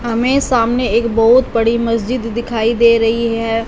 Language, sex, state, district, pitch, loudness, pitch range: Hindi, female, Punjab, Fazilka, 230 Hz, -14 LUFS, 230-240 Hz